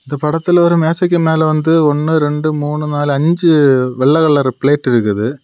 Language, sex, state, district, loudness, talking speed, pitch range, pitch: Tamil, male, Tamil Nadu, Kanyakumari, -13 LUFS, 165 wpm, 140-160 Hz, 150 Hz